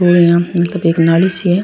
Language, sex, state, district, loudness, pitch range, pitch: Rajasthani, female, Rajasthan, Churu, -12 LUFS, 170-180 Hz, 175 Hz